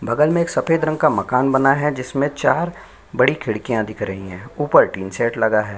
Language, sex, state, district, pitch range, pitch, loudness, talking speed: Hindi, male, Chhattisgarh, Sukma, 110-150 Hz, 130 Hz, -19 LUFS, 205 wpm